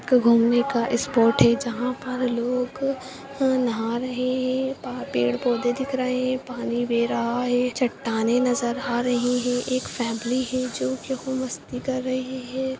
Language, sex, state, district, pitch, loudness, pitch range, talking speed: Hindi, female, Bihar, Jahanabad, 250 Hz, -24 LUFS, 240-255 Hz, 150 wpm